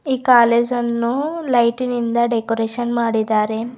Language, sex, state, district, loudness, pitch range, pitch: Kannada, female, Karnataka, Bidar, -18 LUFS, 230-245 Hz, 235 Hz